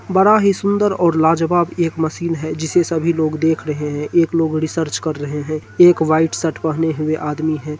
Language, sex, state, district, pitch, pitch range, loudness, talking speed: Hindi, male, Bihar, Supaul, 160 Hz, 155-170 Hz, -17 LUFS, 215 wpm